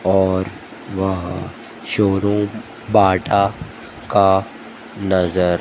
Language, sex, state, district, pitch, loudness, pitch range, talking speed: Hindi, female, Madhya Pradesh, Dhar, 95 Hz, -18 LUFS, 95-105 Hz, 65 wpm